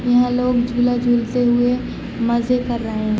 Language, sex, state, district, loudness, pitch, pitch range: Hindi, female, Jharkhand, Sahebganj, -18 LUFS, 240 Hz, 235-245 Hz